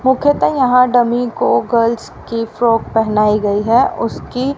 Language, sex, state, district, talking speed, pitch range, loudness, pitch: Hindi, female, Haryana, Rohtak, 145 wpm, 225-250 Hz, -14 LUFS, 235 Hz